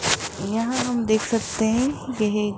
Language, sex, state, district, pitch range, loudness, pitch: Hindi, female, Rajasthan, Jaipur, 210-245 Hz, -23 LUFS, 225 Hz